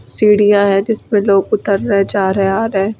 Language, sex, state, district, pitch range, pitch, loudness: Hindi, female, Uttar Pradesh, Lucknow, 195-210 Hz, 200 Hz, -13 LUFS